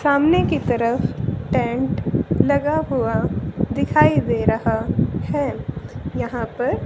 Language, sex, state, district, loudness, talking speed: Hindi, female, Haryana, Rohtak, -20 LUFS, 105 wpm